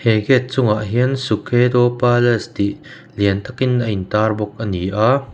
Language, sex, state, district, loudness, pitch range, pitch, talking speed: Mizo, male, Mizoram, Aizawl, -17 LUFS, 105-125 Hz, 115 Hz, 155 wpm